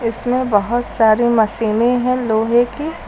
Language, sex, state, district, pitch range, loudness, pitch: Hindi, female, Uttar Pradesh, Lucknow, 220-245 Hz, -16 LUFS, 235 Hz